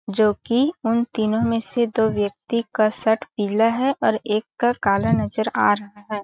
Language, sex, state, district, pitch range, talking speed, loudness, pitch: Hindi, female, Chhattisgarh, Balrampur, 210-235 Hz, 185 wpm, -21 LUFS, 220 Hz